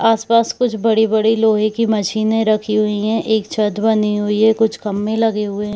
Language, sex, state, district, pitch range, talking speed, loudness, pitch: Hindi, female, Jharkhand, Jamtara, 210-225 Hz, 240 wpm, -16 LUFS, 220 Hz